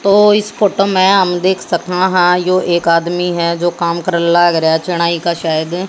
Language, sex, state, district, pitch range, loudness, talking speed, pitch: Hindi, female, Haryana, Jhajjar, 170-185 Hz, -13 LUFS, 195 wpm, 175 Hz